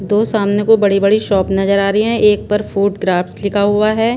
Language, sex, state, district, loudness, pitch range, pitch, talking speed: Hindi, female, Bihar, Patna, -14 LUFS, 200-215 Hz, 205 Hz, 230 wpm